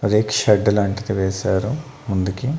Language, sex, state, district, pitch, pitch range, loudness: Telugu, male, Andhra Pradesh, Annamaya, 105 Hz, 95-115 Hz, -20 LUFS